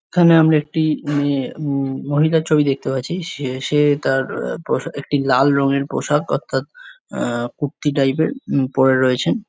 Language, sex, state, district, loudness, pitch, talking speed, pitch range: Bengali, male, West Bengal, Jhargram, -18 LUFS, 145 Hz, 150 wpm, 135-155 Hz